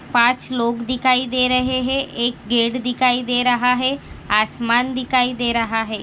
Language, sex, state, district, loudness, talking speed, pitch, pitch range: Hindi, female, Maharashtra, Dhule, -18 LUFS, 170 wpm, 245 Hz, 235-255 Hz